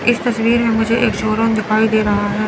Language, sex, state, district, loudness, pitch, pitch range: Hindi, female, Chandigarh, Chandigarh, -16 LUFS, 220 Hz, 215-230 Hz